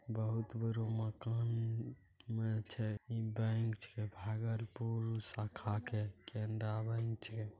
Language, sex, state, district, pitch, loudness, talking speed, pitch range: Angika, male, Bihar, Bhagalpur, 110 Hz, -41 LUFS, 105 wpm, 110-115 Hz